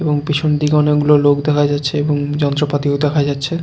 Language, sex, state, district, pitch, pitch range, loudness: Bengali, male, West Bengal, Jalpaiguri, 145 Hz, 145-150 Hz, -15 LUFS